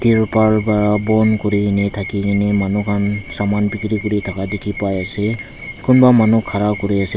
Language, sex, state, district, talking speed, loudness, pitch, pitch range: Nagamese, male, Nagaland, Dimapur, 135 wpm, -16 LUFS, 105 Hz, 100-110 Hz